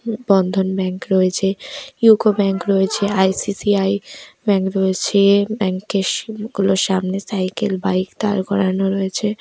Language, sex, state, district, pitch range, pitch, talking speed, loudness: Bengali, female, West Bengal, Paschim Medinipur, 190-210 Hz, 195 Hz, 130 wpm, -18 LUFS